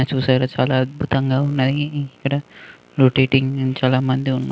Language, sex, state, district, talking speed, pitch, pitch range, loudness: Telugu, male, Telangana, Karimnagar, 105 wpm, 130 Hz, 130-140 Hz, -19 LUFS